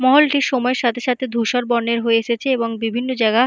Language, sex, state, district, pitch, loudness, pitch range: Bengali, female, West Bengal, Paschim Medinipur, 245 Hz, -18 LUFS, 230-255 Hz